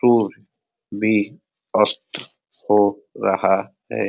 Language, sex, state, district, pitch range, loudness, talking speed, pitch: Hindi, male, Uttar Pradesh, Ghazipur, 95-110 Hz, -20 LUFS, 100 wpm, 105 Hz